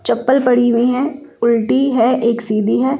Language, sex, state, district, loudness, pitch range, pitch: Hindi, female, Delhi, New Delhi, -15 LUFS, 235-265 Hz, 245 Hz